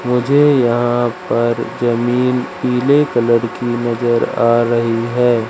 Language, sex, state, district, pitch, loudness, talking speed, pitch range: Hindi, male, Madhya Pradesh, Katni, 120 Hz, -15 LUFS, 120 wpm, 115-125 Hz